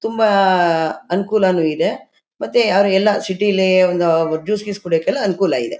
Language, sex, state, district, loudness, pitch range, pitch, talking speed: Kannada, female, Karnataka, Mysore, -16 LUFS, 165-200 Hz, 190 Hz, 165 wpm